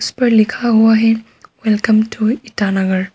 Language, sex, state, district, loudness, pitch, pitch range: Hindi, female, Arunachal Pradesh, Papum Pare, -14 LUFS, 220 Hz, 215-230 Hz